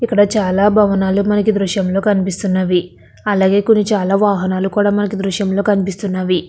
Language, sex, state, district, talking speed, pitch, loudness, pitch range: Telugu, female, Andhra Pradesh, Krishna, 110 wpm, 200 Hz, -15 LUFS, 190-205 Hz